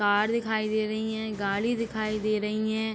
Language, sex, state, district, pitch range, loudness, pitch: Hindi, female, Uttar Pradesh, Etah, 215-220 Hz, -28 LUFS, 215 Hz